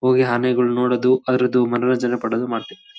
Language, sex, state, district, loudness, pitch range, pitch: Kannada, male, Karnataka, Shimoga, -19 LUFS, 120-130 Hz, 125 Hz